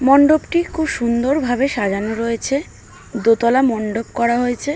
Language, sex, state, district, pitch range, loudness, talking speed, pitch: Bengali, female, West Bengal, Malda, 230-275 Hz, -17 LUFS, 115 wpm, 245 Hz